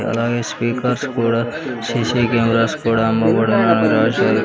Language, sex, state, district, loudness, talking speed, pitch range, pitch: Telugu, male, Andhra Pradesh, Sri Satya Sai, -17 LUFS, 120 wpm, 115-120 Hz, 115 Hz